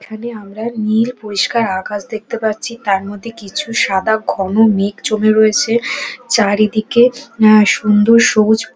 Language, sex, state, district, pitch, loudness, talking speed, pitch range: Bengali, female, West Bengal, Dakshin Dinajpur, 220 Hz, -14 LUFS, 130 wpm, 205-230 Hz